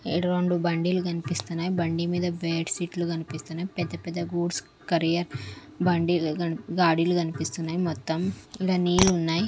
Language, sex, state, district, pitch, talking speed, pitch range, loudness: Telugu, female, Andhra Pradesh, Manyam, 170 Hz, 120 wpm, 165-180 Hz, -27 LUFS